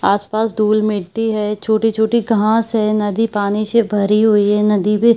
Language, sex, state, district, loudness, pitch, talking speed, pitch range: Hindi, female, Chhattisgarh, Bilaspur, -15 LUFS, 215 Hz, 175 wpm, 210-225 Hz